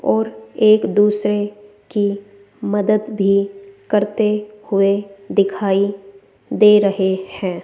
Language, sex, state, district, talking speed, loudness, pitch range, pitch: Hindi, female, Rajasthan, Jaipur, 95 wpm, -17 LUFS, 195-210 Hz, 200 Hz